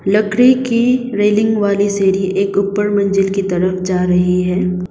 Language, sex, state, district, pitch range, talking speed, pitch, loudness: Hindi, female, Sikkim, Gangtok, 185-210 Hz, 160 wpm, 195 Hz, -15 LUFS